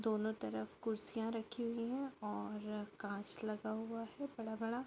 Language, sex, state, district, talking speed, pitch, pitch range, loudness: Hindi, female, Chhattisgarh, Korba, 135 wpm, 220 Hz, 210-230 Hz, -43 LUFS